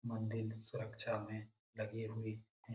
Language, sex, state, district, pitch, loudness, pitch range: Hindi, male, Bihar, Lakhisarai, 110 Hz, -44 LUFS, 110-115 Hz